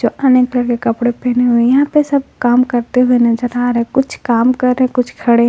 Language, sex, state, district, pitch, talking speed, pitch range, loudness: Hindi, female, Jharkhand, Palamu, 245 Hz, 275 wpm, 240-255 Hz, -13 LUFS